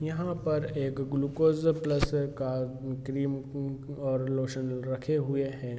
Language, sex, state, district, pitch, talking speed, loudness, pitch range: Hindi, male, Bihar, Vaishali, 140 Hz, 145 wpm, -31 LUFS, 130-150 Hz